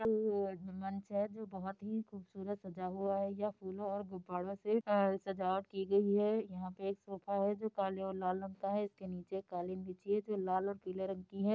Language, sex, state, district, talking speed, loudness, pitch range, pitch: Hindi, female, Uttar Pradesh, Hamirpur, 230 wpm, -39 LUFS, 190-205 Hz, 195 Hz